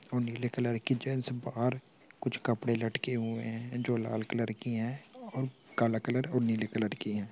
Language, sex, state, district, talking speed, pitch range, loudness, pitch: Hindi, male, Andhra Pradesh, Anantapur, 195 wpm, 115-125 Hz, -33 LUFS, 120 Hz